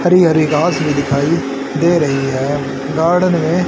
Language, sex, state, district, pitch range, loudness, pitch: Hindi, male, Haryana, Charkhi Dadri, 140-170 Hz, -15 LUFS, 150 Hz